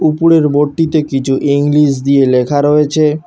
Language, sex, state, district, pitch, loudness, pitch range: Bengali, male, West Bengal, Alipurduar, 145 Hz, -12 LUFS, 140-155 Hz